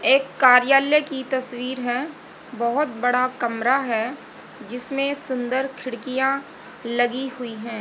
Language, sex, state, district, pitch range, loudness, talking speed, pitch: Hindi, female, Haryana, Jhajjar, 245-270 Hz, -22 LUFS, 115 wpm, 255 Hz